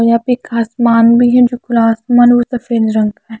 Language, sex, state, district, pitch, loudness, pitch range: Hindi, female, Bihar, Katihar, 235 Hz, -11 LUFS, 230-245 Hz